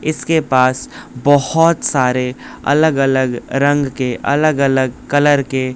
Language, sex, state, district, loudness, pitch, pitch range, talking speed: Hindi, male, Bihar, West Champaran, -15 LUFS, 135 Hz, 130-145 Hz, 125 wpm